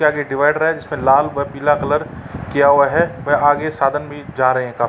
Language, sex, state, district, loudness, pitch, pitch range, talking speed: Hindi, male, Uttar Pradesh, Jalaun, -16 LUFS, 145 Hz, 140-150 Hz, 245 wpm